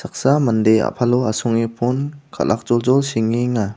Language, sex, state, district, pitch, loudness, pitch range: Garo, male, Meghalaya, South Garo Hills, 120 Hz, -18 LUFS, 115-130 Hz